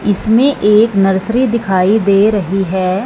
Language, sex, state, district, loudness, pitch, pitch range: Hindi, male, Punjab, Fazilka, -12 LUFS, 205 Hz, 195-220 Hz